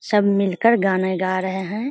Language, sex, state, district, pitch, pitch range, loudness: Hindi, female, Bihar, Sitamarhi, 195 Hz, 185-210 Hz, -20 LUFS